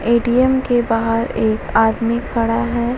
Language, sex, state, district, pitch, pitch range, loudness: Hindi, female, Bihar, Vaishali, 235 Hz, 225-240 Hz, -17 LUFS